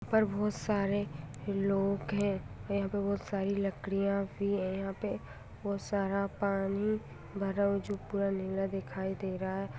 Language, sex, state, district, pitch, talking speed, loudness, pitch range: Hindi, female, Jharkhand, Sahebganj, 200 Hz, 170 wpm, -34 LUFS, 195-200 Hz